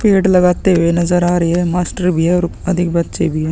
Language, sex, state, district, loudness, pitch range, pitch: Hindi, male, Chhattisgarh, Sukma, -14 LUFS, 170-180 Hz, 175 Hz